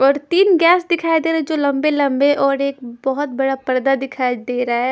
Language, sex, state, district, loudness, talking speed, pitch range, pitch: Hindi, female, Punjab, Kapurthala, -17 LUFS, 230 wpm, 260-315 Hz, 275 Hz